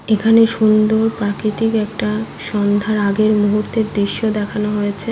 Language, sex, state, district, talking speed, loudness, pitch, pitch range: Bengali, female, West Bengal, Paschim Medinipur, 115 wpm, -16 LUFS, 215 Hz, 205-220 Hz